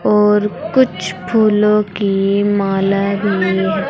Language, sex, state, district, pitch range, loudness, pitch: Hindi, female, Uttar Pradesh, Saharanpur, 195-210 Hz, -15 LUFS, 205 Hz